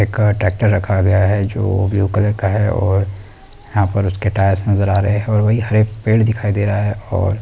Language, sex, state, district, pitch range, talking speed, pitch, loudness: Hindi, male, Uttarakhand, Uttarkashi, 100-105 Hz, 225 wpm, 105 Hz, -16 LUFS